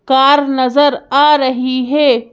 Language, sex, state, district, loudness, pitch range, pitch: Hindi, female, Madhya Pradesh, Bhopal, -12 LUFS, 255-290 Hz, 270 Hz